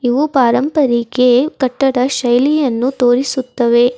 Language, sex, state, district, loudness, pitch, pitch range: Kannada, female, Karnataka, Bidar, -14 LUFS, 255 Hz, 245-270 Hz